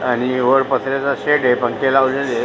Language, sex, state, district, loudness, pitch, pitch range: Marathi, female, Maharashtra, Aurangabad, -16 LUFS, 135 Hz, 125-135 Hz